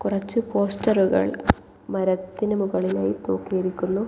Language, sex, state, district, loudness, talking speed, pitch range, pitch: Malayalam, female, Kerala, Kozhikode, -24 LUFS, 75 wpm, 180-200 Hz, 190 Hz